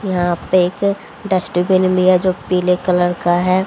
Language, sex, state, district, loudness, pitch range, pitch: Hindi, female, Haryana, Rohtak, -16 LUFS, 180-185 Hz, 180 Hz